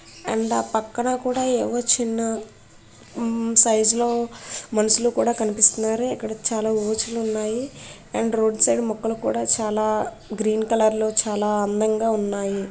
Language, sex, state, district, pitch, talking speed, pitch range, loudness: Telugu, female, Andhra Pradesh, Srikakulam, 220 Hz, 125 wpm, 215-230 Hz, -21 LUFS